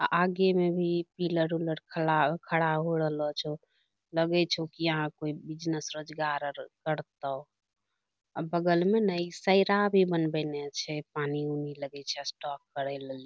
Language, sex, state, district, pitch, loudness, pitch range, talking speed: Angika, female, Bihar, Bhagalpur, 160 Hz, -30 LUFS, 150-170 Hz, 165 wpm